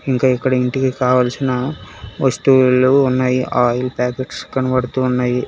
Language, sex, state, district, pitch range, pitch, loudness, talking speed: Telugu, male, Telangana, Hyderabad, 125-130 Hz, 130 Hz, -16 LUFS, 100 wpm